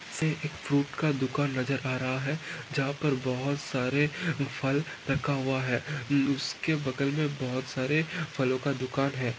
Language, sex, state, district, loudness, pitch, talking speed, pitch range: Hindi, male, Maharashtra, Pune, -30 LUFS, 140 Hz, 160 wpm, 130-150 Hz